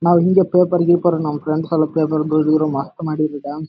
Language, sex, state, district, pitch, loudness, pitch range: Kannada, male, Karnataka, Raichur, 155 Hz, -17 LUFS, 155-170 Hz